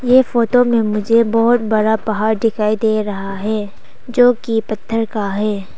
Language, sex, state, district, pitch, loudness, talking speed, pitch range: Hindi, female, Arunachal Pradesh, Papum Pare, 220 Hz, -16 LUFS, 165 wpm, 210-230 Hz